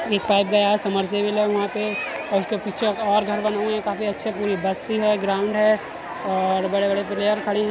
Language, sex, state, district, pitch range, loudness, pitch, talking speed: Hindi, male, Uttar Pradesh, Etah, 200-210 Hz, -22 LUFS, 205 Hz, 220 wpm